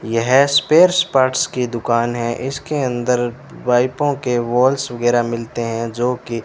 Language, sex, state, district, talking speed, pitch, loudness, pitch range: Hindi, male, Rajasthan, Bikaner, 150 wpm, 125 Hz, -17 LUFS, 120-135 Hz